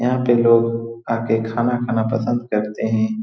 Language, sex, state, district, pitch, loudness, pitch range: Hindi, male, Bihar, Saran, 115 Hz, -19 LUFS, 110-120 Hz